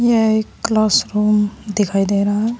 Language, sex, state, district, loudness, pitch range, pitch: Hindi, female, Uttar Pradesh, Saharanpur, -17 LUFS, 205-220 Hz, 210 Hz